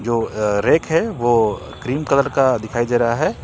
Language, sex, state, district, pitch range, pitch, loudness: Hindi, male, Jharkhand, Ranchi, 115-135 Hz, 120 Hz, -18 LUFS